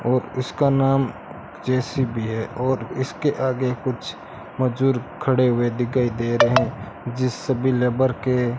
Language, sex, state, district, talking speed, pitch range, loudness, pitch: Hindi, male, Rajasthan, Bikaner, 140 wpm, 120-130 Hz, -22 LUFS, 130 Hz